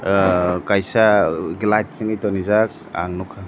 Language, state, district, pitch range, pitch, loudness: Kokborok, Tripura, Dhalai, 95-105 Hz, 100 Hz, -19 LUFS